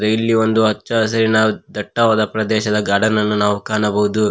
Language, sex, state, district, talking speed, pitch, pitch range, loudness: Kannada, male, Karnataka, Koppal, 140 wpm, 110 Hz, 105-110 Hz, -16 LUFS